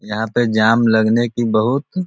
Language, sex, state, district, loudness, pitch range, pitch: Hindi, male, Bihar, Sitamarhi, -16 LUFS, 110-120 Hz, 115 Hz